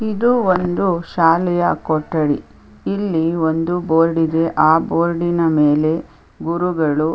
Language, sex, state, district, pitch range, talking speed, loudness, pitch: Kannada, female, Karnataka, Chamarajanagar, 155-175 Hz, 100 wpm, -17 LUFS, 165 Hz